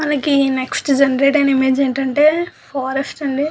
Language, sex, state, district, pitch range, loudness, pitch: Telugu, female, Andhra Pradesh, Visakhapatnam, 270-295 Hz, -16 LUFS, 275 Hz